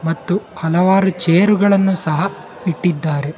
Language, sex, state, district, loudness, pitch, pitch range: Kannada, male, Karnataka, Bangalore, -16 LUFS, 180 Hz, 165-195 Hz